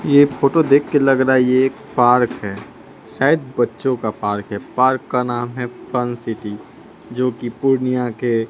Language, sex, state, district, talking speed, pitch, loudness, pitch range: Hindi, male, Bihar, Katihar, 185 wpm, 125 Hz, -18 LUFS, 120-130 Hz